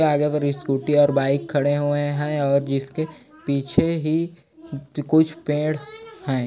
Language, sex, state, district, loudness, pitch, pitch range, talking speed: Hindi, male, Chhattisgarh, Korba, -22 LUFS, 145 Hz, 140-160 Hz, 140 wpm